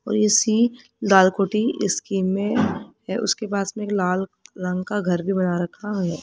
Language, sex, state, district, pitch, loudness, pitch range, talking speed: Hindi, female, Rajasthan, Jaipur, 205 Hz, -22 LUFS, 185-215 Hz, 175 wpm